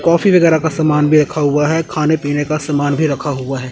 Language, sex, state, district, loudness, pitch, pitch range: Hindi, male, Chandigarh, Chandigarh, -14 LUFS, 150 Hz, 145-160 Hz